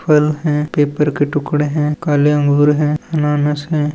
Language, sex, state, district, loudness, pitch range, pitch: Hindi, male, Uttar Pradesh, Etah, -15 LUFS, 145-150 Hz, 150 Hz